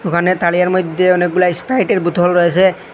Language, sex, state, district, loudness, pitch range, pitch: Bengali, male, Assam, Hailakandi, -14 LUFS, 175-185 Hz, 180 Hz